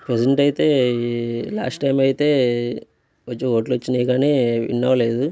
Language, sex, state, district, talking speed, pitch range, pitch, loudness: Telugu, male, Andhra Pradesh, Guntur, 145 wpm, 120-135 Hz, 125 Hz, -19 LUFS